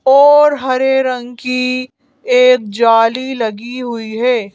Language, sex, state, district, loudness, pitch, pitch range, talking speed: Hindi, female, Madhya Pradesh, Bhopal, -13 LUFS, 255 Hz, 230-265 Hz, 120 wpm